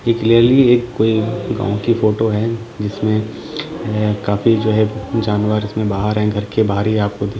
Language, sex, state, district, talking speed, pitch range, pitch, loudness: Hindi, male, Jharkhand, Sahebganj, 185 wpm, 105-115 Hz, 110 Hz, -17 LUFS